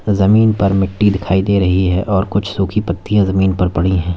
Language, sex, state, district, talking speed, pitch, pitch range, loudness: Hindi, male, Uttar Pradesh, Lalitpur, 215 wpm, 95 Hz, 95-100 Hz, -15 LUFS